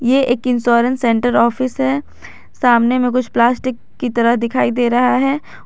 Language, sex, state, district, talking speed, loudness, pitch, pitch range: Hindi, female, Jharkhand, Garhwa, 170 wpm, -15 LUFS, 250 Hz, 235-255 Hz